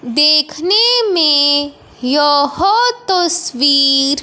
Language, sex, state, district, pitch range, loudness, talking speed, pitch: Hindi, male, Punjab, Fazilka, 285-370 Hz, -12 LUFS, 70 wpm, 300 Hz